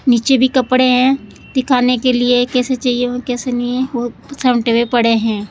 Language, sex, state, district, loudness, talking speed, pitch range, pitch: Hindi, female, Rajasthan, Jaipur, -15 LUFS, 185 wpm, 240-260 Hz, 250 Hz